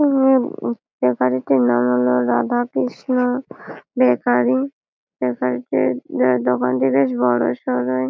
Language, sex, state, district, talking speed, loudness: Bengali, female, West Bengal, Malda, 95 wpm, -19 LUFS